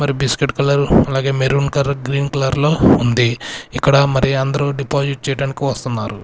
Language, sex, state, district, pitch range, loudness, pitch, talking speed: Telugu, male, Andhra Pradesh, Sri Satya Sai, 135-140 Hz, -16 LUFS, 140 Hz, 155 wpm